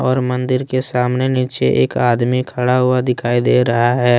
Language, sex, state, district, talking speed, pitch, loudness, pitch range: Hindi, male, Jharkhand, Deoghar, 185 wpm, 125 Hz, -16 LUFS, 120-130 Hz